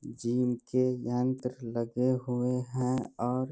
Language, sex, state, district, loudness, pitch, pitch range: Hindi, male, Bihar, Bhagalpur, -31 LUFS, 125 Hz, 120-130 Hz